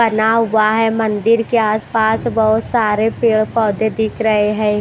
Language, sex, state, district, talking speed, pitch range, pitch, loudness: Hindi, female, Bihar, West Champaran, 160 wpm, 215-225 Hz, 220 Hz, -15 LUFS